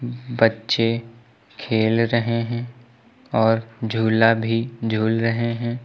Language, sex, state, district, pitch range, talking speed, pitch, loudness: Hindi, male, Uttar Pradesh, Lucknow, 115-120 Hz, 100 wpm, 115 Hz, -21 LUFS